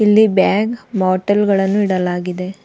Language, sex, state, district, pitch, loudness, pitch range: Kannada, female, Karnataka, Dakshina Kannada, 200 Hz, -16 LUFS, 185-205 Hz